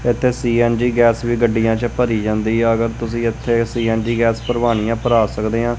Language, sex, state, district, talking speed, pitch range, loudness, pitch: Punjabi, male, Punjab, Kapurthala, 195 wpm, 115-120 Hz, -17 LUFS, 115 Hz